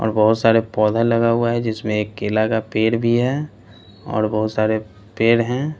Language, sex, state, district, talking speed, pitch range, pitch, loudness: Hindi, male, Bihar, Patna, 195 wpm, 110-115 Hz, 110 Hz, -19 LUFS